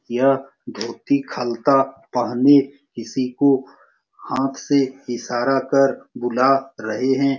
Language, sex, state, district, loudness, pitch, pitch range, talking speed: Hindi, male, Bihar, Saran, -20 LUFS, 135 Hz, 120-135 Hz, 105 wpm